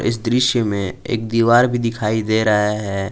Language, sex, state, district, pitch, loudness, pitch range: Hindi, male, Jharkhand, Palamu, 115 Hz, -18 LUFS, 105-120 Hz